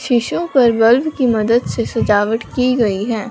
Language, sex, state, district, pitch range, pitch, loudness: Hindi, male, Punjab, Fazilka, 225-255 Hz, 235 Hz, -15 LUFS